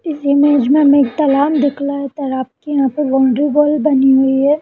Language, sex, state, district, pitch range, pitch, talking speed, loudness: Hindi, female, Uttarakhand, Uttarkashi, 270-295 Hz, 280 Hz, 235 wpm, -14 LUFS